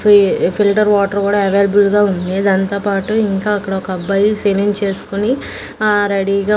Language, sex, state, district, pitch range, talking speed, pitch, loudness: Telugu, female, Andhra Pradesh, Manyam, 195-205 Hz, 165 wpm, 200 Hz, -15 LUFS